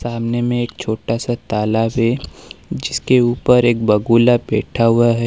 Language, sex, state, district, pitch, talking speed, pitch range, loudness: Hindi, male, Uttar Pradesh, Lalitpur, 115 Hz, 160 wpm, 115-120 Hz, -16 LUFS